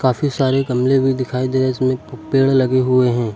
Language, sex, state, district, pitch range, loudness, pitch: Hindi, male, Uttar Pradesh, Lucknow, 125-135 Hz, -17 LUFS, 130 Hz